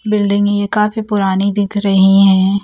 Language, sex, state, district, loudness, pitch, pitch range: Hindi, female, Chhattisgarh, Raipur, -13 LUFS, 200 Hz, 195-205 Hz